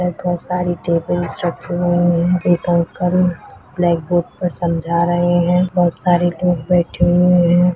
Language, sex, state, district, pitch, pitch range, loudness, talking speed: Hindi, female, Bihar, Madhepura, 175 Hz, 170-180 Hz, -16 LUFS, 155 wpm